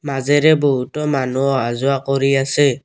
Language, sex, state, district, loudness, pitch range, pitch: Assamese, male, Assam, Kamrup Metropolitan, -17 LUFS, 135-145 Hz, 135 Hz